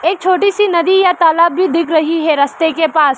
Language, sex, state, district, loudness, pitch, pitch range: Hindi, female, Arunachal Pradesh, Lower Dibang Valley, -12 LUFS, 335 Hz, 320-365 Hz